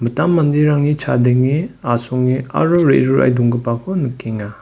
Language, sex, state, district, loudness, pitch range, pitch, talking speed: Garo, male, Meghalaya, West Garo Hills, -16 LUFS, 120-150 Hz, 130 Hz, 105 wpm